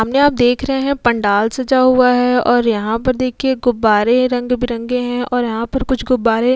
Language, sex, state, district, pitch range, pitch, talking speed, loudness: Hindi, female, Bihar, Vaishali, 235-255 Hz, 245 Hz, 210 wpm, -15 LUFS